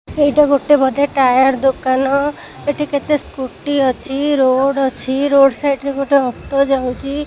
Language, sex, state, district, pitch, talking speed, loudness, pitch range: Odia, female, Odisha, Khordha, 275 Hz, 140 wpm, -15 LUFS, 265-285 Hz